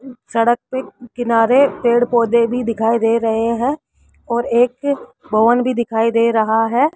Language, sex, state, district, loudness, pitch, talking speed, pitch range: Hindi, female, Rajasthan, Jaipur, -16 LUFS, 235 Hz, 155 wpm, 230-250 Hz